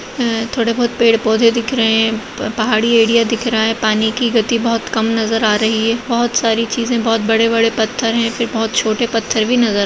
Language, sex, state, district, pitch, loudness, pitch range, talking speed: Kumaoni, female, Uttarakhand, Uttarkashi, 230 Hz, -15 LUFS, 220-235 Hz, 200 wpm